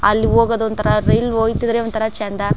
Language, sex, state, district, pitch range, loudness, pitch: Kannada, female, Karnataka, Chamarajanagar, 210-230 Hz, -17 LUFS, 220 Hz